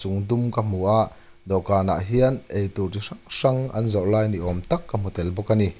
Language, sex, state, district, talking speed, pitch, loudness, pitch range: Mizo, male, Mizoram, Aizawl, 240 wpm, 105 Hz, -20 LUFS, 95-115 Hz